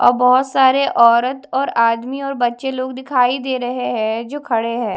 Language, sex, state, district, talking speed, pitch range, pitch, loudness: Hindi, female, Odisha, Malkangiri, 195 wpm, 235-265 Hz, 255 Hz, -17 LUFS